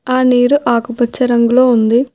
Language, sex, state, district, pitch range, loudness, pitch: Telugu, female, Telangana, Hyderabad, 235-255 Hz, -12 LUFS, 245 Hz